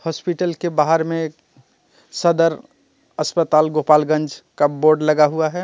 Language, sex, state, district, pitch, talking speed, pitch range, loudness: Hindi, male, Jharkhand, Ranchi, 160 Hz, 130 wpm, 155-170 Hz, -18 LUFS